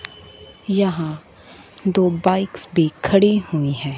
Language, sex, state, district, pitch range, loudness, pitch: Hindi, female, Punjab, Fazilka, 140-195 Hz, -19 LUFS, 170 Hz